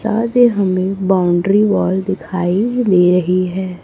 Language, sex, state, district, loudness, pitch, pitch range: Hindi, female, Chhattisgarh, Raipur, -15 LUFS, 190 Hz, 180-205 Hz